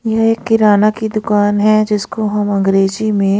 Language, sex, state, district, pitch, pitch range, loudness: Hindi, female, Haryana, Rohtak, 210 Hz, 205-220 Hz, -14 LUFS